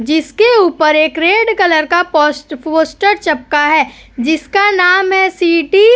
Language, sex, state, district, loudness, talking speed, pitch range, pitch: Hindi, female, Uttar Pradesh, Etah, -11 LUFS, 150 wpm, 310-390 Hz, 330 Hz